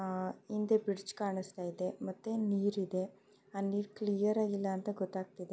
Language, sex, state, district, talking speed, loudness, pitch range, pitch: Kannada, female, Karnataka, Mysore, 65 wpm, -36 LUFS, 190-205 Hz, 200 Hz